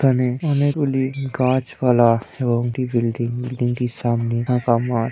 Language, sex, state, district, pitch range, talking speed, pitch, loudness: Bengali, male, West Bengal, Purulia, 120-130 Hz, 130 wpm, 125 Hz, -20 LUFS